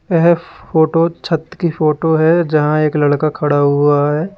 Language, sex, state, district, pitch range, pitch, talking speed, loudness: Hindi, male, Uttar Pradesh, Lalitpur, 150-170 Hz, 155 Hz, 165 wpm, -14 LUFS